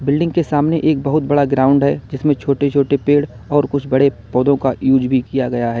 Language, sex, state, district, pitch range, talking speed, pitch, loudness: Hindi, male, Uttar Pradesh, Lalitpur, 130-145 Hz, 225 wpm, 140 Hz, -16 LUFS